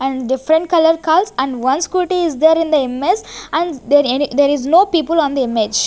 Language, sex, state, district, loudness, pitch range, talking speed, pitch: English, female, Chandigarh, Chandigarh, -15 LUFS, 270-335 Hz, 225 wpm, 310 Hz